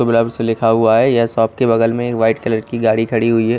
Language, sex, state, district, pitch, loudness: Hindi, male, Odisha, Khordha, 115 Hz, -15 LUFS